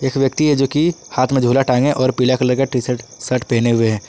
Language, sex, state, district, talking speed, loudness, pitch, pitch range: Hindi, male, Jharkhand, Ranchi, 250 wpm, -17 LUFS, 130 Hz, 125-135 Hz